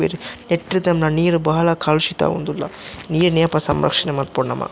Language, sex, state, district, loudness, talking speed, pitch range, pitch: Tulu, male, Karnataka, Dakshina Kannada, -18 LUFS, 140 wpm, 155-170 Hz, 165 Hz